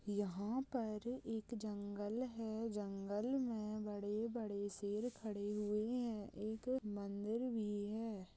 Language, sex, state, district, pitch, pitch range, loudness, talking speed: Hindi, female, Uttar Pradesh, Budaun, 215 Hz, 205-230 Hz, -43 LUFS, 115 wpm